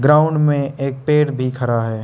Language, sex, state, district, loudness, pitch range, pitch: Hindi, male, Arunachal Pradesh, Lower Dibang Valley, -17 LUFS, 130-150 Hz, 135 Hz